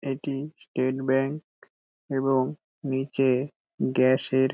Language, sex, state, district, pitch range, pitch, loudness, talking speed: Bengali, male, West Bengal, Dakshin Dinajpur, 130-140 Hz, 135 Hz, -26 LUFS, 90 wpm